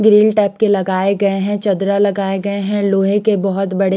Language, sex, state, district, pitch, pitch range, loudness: Hindi, female, Chandigarh, Chandigarh, 200 Hz, 195-205 Hz, -15 LUFS